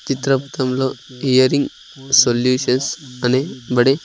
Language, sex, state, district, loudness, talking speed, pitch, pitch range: Telugu, male, Andhra Pradesh, Sri Satya Sai, -17 LUFS, 75 wpm, 130 Hz, 125-135 Hz